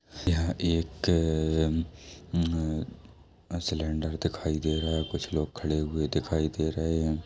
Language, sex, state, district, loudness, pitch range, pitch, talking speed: Hindi, male, Uttar Pradesh, Deoria, -29 LUFS, 80-85 Hz, 80 Hz, 155 wpm